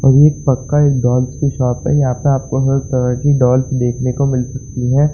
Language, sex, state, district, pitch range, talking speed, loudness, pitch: Hindi, male, Bihar, Saran, 125-140 Hz, 255 wpm, -15 LUFS, 130 Hz